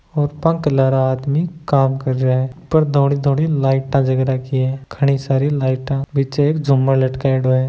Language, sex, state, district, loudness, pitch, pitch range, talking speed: Hindi, male, Rajasthan, Nagaur, -17 LUFS, 135 Hz, 130-145 Hz, 170 wpm